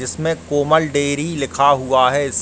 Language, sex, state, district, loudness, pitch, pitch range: Hindi, male, Bihar, Gaya, -17 LUFS, 145 Hz, 135-155 Hz